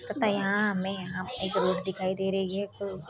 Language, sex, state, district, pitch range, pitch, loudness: Hindi, female, Bihar, Purnia, 185-200 Hz, 190 Hz, -30 LUFS